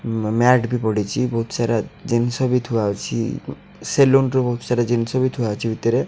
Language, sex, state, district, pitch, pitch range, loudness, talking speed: Odia, male, Odisha, Khordha, 120 Hz, 115-125 Hz, -20 LUFS, 180 wpm